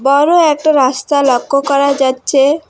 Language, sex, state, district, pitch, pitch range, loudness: Bengali, female, West Bengal, Alipurduar, 280 Hz, 270-295 Hz, -12 LUFS